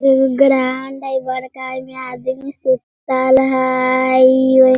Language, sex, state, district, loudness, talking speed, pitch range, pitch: Hindi, female, Bihar, Sitamarhi, -15 LUFS, 100 wpm, 260-265 Hz, 260 Hz